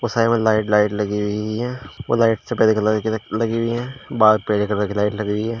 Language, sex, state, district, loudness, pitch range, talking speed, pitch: Hindi, male, Uttar Pradesh, Shamli, -19 LUFS, 105-115 Hz, 235 wpm, 110 Hz